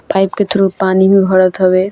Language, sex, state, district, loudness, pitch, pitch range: Bhojpuri, female, Bihar, Gopalganj, -12 LUFS, 190 Hz, 185-195 Hz